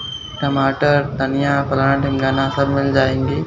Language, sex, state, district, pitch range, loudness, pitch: Hindi, male, Bihar, Katihar, 135-140 Hz, -17 LUFS, 135 Hz